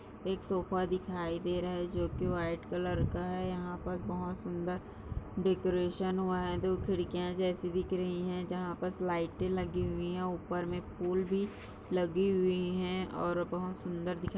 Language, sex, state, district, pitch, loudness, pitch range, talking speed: Hindi, female, Chhattisgarh, Rajnandgaon, 180 Hz, -35 LUFS, 175-185 Hz, 175 wpm